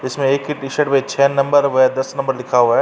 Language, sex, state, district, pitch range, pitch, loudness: Hindi, male, Uttar Pradesh, Varanasi, 130-140 Hz, 135 Hz, -16 LUFS